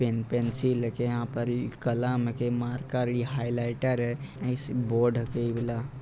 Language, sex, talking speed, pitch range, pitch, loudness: Bhojpuri, male, 190 wpm, 120-125 Hz, 120 Hz, -29 LUFS